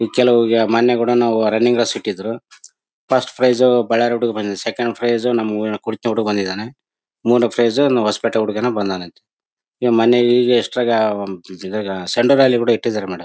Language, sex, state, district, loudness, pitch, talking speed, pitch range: Kannada, male, Karnataka, Bellary, -17 LUFS, 115 Hz, 150 wpm, 105-120 Hz